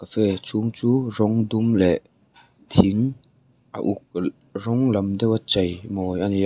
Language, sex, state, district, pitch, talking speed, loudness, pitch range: Mizo, male, Mizoram, Aizawl, 110 Hz, 160 wpm, -22 LUFS, 100-125 Hz